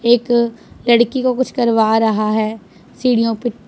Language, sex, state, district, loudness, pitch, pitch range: Hindi, female, Punjab, Pathankot, -16 LUFS, 230 Hz, 220-240 Hz